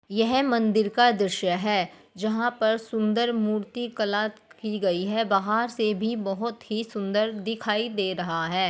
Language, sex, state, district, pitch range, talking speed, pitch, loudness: Hindi, female, Bihar, Begusarai, 200-230 Hz, 160 wpm, 215 Hz, -25 LUFS